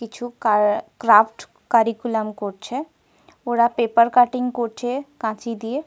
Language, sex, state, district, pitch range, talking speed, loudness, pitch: Bengali, female, Jharkhand, Sahebganj, 225-245 Hz, 110 wpm, -20 LUFS, 235 Hz